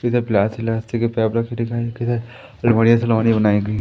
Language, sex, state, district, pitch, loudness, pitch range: Hindi, male, Madhya Pradesh, Umaria, 115 Hz, -19 LUFS, 110-115 Hz